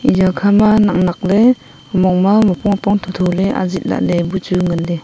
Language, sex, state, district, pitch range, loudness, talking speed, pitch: Wancho, female, Arunachal Pradesh, Longding, 180-205 Hz, -14 LUFS, 155 wpm, 185 Hz